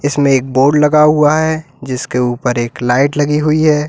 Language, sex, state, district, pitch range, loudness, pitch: Hindi, male, Uttar Pradesh, Lalitpur, 130-150 Hz, -13 LUFS, 145 Hz